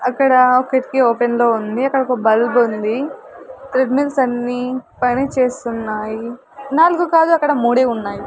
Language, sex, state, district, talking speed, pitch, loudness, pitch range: Telugu, female, Andhra Pradesh, Sri Satya Sai, 125 wpm, 250 Hz, -16 LUFS, 235-270 Hz